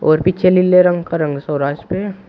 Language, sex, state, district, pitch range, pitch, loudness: Hindi, male, Uttar Pradesh, Shamli, 155-185 Hz, 180 Hz, -15 LUFS